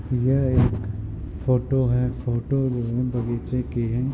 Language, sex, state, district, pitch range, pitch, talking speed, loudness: Hindi, male, Bihar, Muzaffarpur, 120-125 Hz, 125 Hz, 130 wpm, -24 LUFS